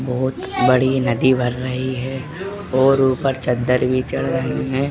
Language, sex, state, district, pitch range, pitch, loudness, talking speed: Hindi, male, Uttar Pradesh, Jalaun, 125-135 Hz, 130 Hz, -19 LUFS, 160 wpm